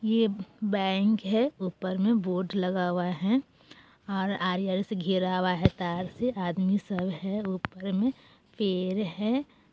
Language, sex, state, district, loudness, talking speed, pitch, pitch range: Bajjika, female, Bihar, Vaishali, -29 LUFS, 140 wpm, 190 Hz, 185-215 Hz